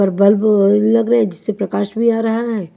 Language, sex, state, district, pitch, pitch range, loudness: Hindi, female, Haryana, Charkhi Dadri, 215 Hz, 200-225 Hz, -15 LUFS